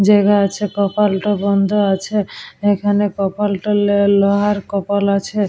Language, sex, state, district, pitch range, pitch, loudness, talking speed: Bengali, female, West Bengal, Dakshin Dinajpur, 200-205 Hz, 205 Hz, -16 LUFS, 120 wpm